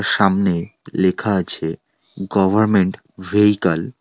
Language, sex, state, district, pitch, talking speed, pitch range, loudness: Bengali, male, West Bengal, Alipurduar, 95 Hz, 90 wpm, 90-105 Hz, -18 LUFS